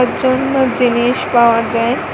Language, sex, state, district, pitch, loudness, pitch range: Bengali, female, Tripura, West Tripura, 245 Hz, -14 LUFS, 235-260 Hz